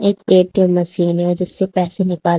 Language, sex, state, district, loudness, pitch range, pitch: Hindi, female, Haryana, Charkhi Dadri, -16 LUFS, 175-190 Hz, 180 Hz